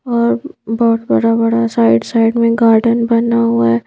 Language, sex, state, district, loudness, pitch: Hindi, female, Madhya Pradesh, Bhopal, -13 LUFS, 225 Hz